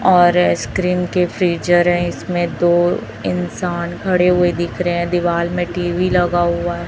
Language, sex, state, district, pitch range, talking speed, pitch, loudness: Hindi, female, Chhattisgarh, Raipur, 170-180 Hz, 165 wpm, 175 Hz, -17 LUFS